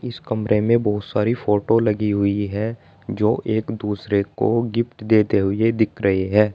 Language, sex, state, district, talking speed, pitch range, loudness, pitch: Hindi, male, Uttar Pradesh, Saharanpur, 175 wpm, 105-115 Hz, -20 LUFS, 105 Hz